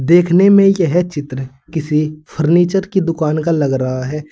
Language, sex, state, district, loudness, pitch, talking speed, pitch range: Hindi, male, Uttar Pradesh, Saharanpur, -15 LUFS, 160 Hz, 165 wpm, 150-175 Hz